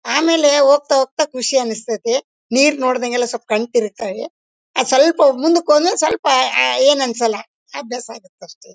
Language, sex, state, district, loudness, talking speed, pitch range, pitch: Kannada, female, Karnataka, Bellary, -16 LUFS, 150 wpm, 240-300 Hz, 265 Hz